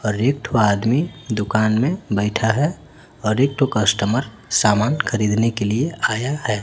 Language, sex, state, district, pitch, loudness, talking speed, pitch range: Hindi, male, Chhattisgarh, Raipur, 110 Hz, -19 LUFS, 165 wpm, 105-135 Hz